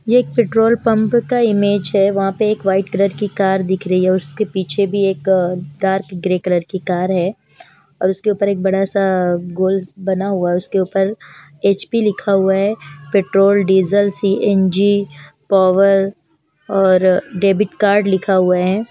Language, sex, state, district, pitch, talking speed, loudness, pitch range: Hindi, female, Chandigarh, Chandigarh, 195 Hz, 175 wpm, -16 LUFS, 185-200 Hz